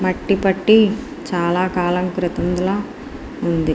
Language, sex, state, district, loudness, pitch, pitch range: Telugu, female, Andhra Pradesh, Srikakulam, -18 LUFS, 185 Hz, 180-215 Hz